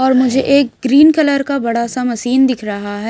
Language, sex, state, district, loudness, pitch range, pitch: Hindi, female, Bihar, Kaimur, -14 LUFS, 235-275 Hz, 260 Hz